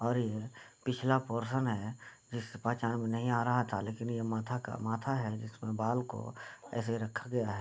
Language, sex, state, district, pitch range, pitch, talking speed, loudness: Hindi, male, Bihar, Bhagalpur, 110-125 Hz, 115 Hz, 195 wpm, -36 LUFS